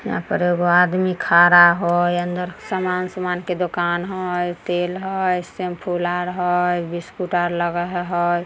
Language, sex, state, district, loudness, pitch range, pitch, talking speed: Maithili, female, Bihar, Samastipur, -19 LUFS, 175-180 Hz, 175 Hz, 165 wpm